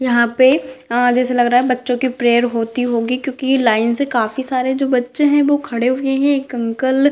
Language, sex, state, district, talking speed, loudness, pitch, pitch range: Hindi, female, Bihar, Gopalganj, 225 wpm, -16 LUFS, 255 Hz, 240-270 Hz